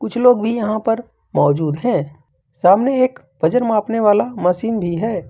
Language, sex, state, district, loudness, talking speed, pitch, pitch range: Hindi, male, Jharkhand, Ranchi, -17 LUFS, 170 wpm, 215 Hz, 170-230 Hz